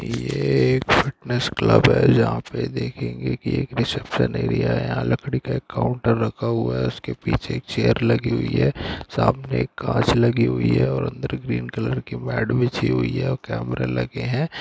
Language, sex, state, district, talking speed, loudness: Hindi, male, Bihar, Saran, 185 wpm, -22 LUFS